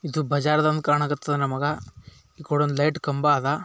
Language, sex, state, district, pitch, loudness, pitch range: Kannada, male, Karnataka, Bijapur, 145 Hz, -23 LUFS, 140-155 Hz